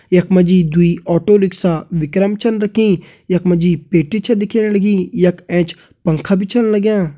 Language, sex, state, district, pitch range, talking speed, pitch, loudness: Hindi, male, Uttarakhand, Uttarkashi, 175-205 Hz, 185 wpm, 185 Hz, -15 LUFS